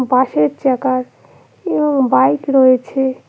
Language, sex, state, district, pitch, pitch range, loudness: Bengali, female, West Bengal, Cooch Behar, 260 Hz, 255-270 Hz, -15 LUFS